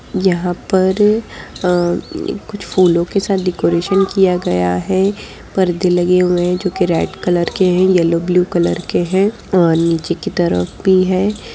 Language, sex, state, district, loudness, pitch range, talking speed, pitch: Hindi, female, Bihar, Jahanabad, -15 LUFS, 175-190 Hz, 165 wpm, 180 Hz